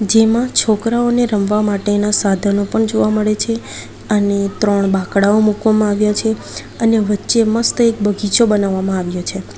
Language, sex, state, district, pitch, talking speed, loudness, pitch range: Gujarati, female, Gujarat, Valsad, 210 Hz, 145 wpm, -15 LUFS, 200-225 Hz